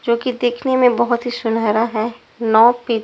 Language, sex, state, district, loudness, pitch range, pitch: Hindi, female, Punjab, Pathankot, -17 LUFS, 225-245 Hz, 235 Hz